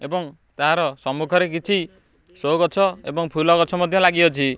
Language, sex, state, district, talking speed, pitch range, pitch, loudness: Odia, male, Odisha, Khordha, 170 wpm, 155-180 Hz, 170 Hz, -20 LUFS